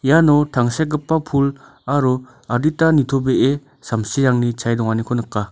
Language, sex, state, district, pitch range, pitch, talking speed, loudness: Garo, male, Meghalaya, North Garo Hills, 120-145 Hz, 135 Hz, 110 wpm, -18 LUFS